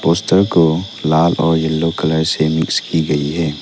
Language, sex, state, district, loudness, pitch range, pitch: Hindi, male, Arunachal Pradesh, Lower Dibang Valley, -15 LUFS, 80-85 Hz, 80 Hz